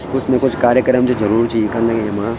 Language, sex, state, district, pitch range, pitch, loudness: Garhwali, male, Uttarakhand, Tehri Garhwal, 110-130 Hz, 115 Hz, -15 LUFS